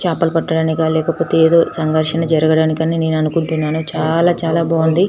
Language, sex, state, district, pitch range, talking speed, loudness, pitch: Telugu, female, Telangana, Nalgonda, 160-165 Hz, 140 wpm, -15 LUFS, 160 Hz